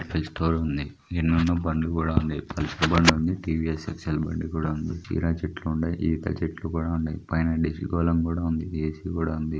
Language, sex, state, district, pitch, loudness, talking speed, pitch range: Telugu, female, Andhra Pradesh, Srikakulam, 80 Hz, -26 LUFS, 185 wpm, 80-85 Hz